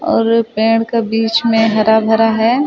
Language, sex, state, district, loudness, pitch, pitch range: Chhattisgarhi, female, Chhattisgarh, Sarguja, -13 LUFS, 225 Hz, 220-230 Hz